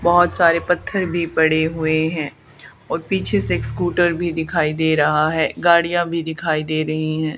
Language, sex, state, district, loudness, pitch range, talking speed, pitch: Hindi, female, Haryana, Charkhi Dadri, -18 LUFS, 155-175 Hz, 185 wpm, 160 Hz